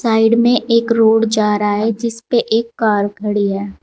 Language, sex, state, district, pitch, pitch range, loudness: Hindi, female, Uttar Pradesh, Saharanpur, 225 Hz, 210-230 Hz, -15 LUFS